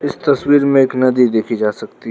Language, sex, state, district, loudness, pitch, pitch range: Hindi, male, Arunachal Pradesh, Lower Dibang Valley, -14 LUFS, 130 Hz, 115-140 Hz